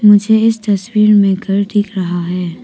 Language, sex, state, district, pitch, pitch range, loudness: Hindi, female, Arunachal Pradesh, Papum Pare, 205 Hz, 190-210 Hz, -13 LUFS